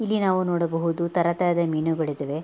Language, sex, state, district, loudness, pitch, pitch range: Kannada, female, Karnataka, Mysore, -24 LUFS, 170 Hz, 160-180 Hz